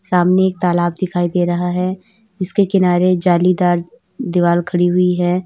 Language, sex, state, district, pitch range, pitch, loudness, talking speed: Hindi, female, Uttar Pradesh, Lalitpur, 175-185 Hz, 180 Hz, -16 LUFS, 145 wpm